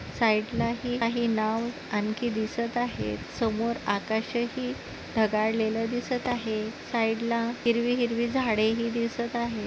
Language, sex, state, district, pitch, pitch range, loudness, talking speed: Marathi, female, Maharashtra, Nagpur, 230 Hz, 220-240 Hz, -28 LUFS, 100 wpm